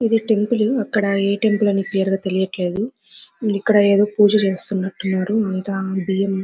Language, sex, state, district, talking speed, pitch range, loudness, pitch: Telugu, female, Andhra Pradesh, Anantapur, 150 wpm, 190-215 Hz, -19 LUFS, 200 Hz